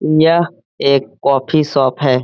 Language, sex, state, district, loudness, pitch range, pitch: Hindi, male, Bihar, Jamui, -15 LUFS, 135-155 Hz, 140 Hz